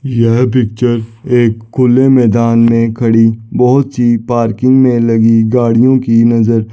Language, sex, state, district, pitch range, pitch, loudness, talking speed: Hindi, male, Chandigarh, Chandigarh, 115-125 Hz, 115 Hz, -10 LUFS, 135 wpm